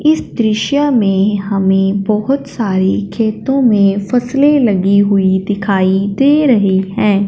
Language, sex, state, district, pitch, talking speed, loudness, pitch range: Hindi, female, Punjab, Fazilka, 205 Hz, 125 wpm, -13 LUFS, 195-245 Hz